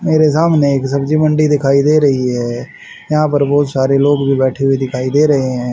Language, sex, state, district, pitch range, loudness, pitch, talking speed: Hindi, male, Haryana, Rohtak, 130-150 Hz, -13 LUFS, 140 Hz, 210 wpm